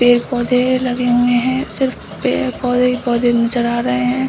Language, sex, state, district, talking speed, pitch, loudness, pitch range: Hindi, female, Bihar, Samastipur, 210 wpm, 245 Hz, -16 LUFS, 240-250 Hz